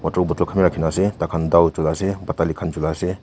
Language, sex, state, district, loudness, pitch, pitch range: Nagamese, male, Nagaland, Kohima, -20 LUFS, 85 Hz, 80-95 Hz